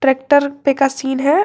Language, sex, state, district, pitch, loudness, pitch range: Hindi, female, Jharkhand, Garhwa, 275 Hz, -16 LUFS, 270-285 Hz